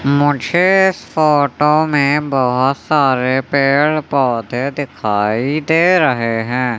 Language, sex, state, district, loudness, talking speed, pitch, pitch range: Hindi, male, Madhya Pradesh, Umaria, -15 LUFS, 105 wpm, 140 Hz, 125-150 Hz